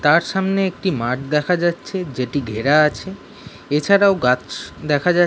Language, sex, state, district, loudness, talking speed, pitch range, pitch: Bengali, male, West Bengal, Kolkata, -19 LUFS, 150 wpm, 140-190 Hz, 155 Hz